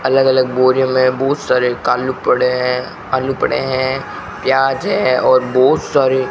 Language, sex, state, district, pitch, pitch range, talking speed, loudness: Hindi, male, Rajasthan, Bikaner, 130 Hz, 125-135 Hz, 170 wpm, -15 LUFS